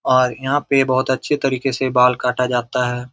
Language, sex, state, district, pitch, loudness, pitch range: Hindi, male, Bihar, Jamui, 130 Hz, -18 LUFS, 125-135 Hz